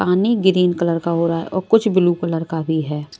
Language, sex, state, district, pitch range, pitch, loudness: Hindi, female, Maharashtra, Mumbai Suburban, 165-190 Hz, 170 Hz, -18 LUFS